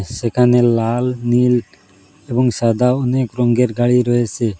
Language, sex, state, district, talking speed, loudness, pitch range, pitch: Bengali, male, Assam, Hailakandi, 115 wpm, -16 LUFS, 115-125 Hz, 120 Hz